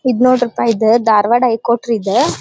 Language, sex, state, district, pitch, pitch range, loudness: Kannada, female, Karnataka, Dharwad, 235 Hz, 225-245 Hz, -13 LUFS